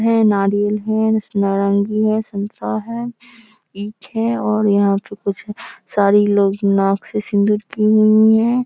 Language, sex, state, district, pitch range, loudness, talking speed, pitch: Hindi, female, Bihar, Samastipur, 200-220 Hz, -17 LUFS, 145 wpm, 210 Hz